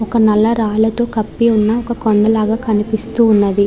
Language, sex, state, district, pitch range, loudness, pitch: Telugu, female, Andhra Pradesh, Krishna, 215-230 Hz, -14 LUFS, 220 Hz